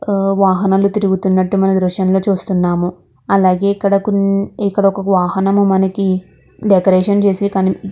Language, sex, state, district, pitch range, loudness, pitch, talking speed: Telugu, female, Andhra Pradesh, Guntur, 190-200 Hz, -14 LUFS, 195 Hz, 115 wpm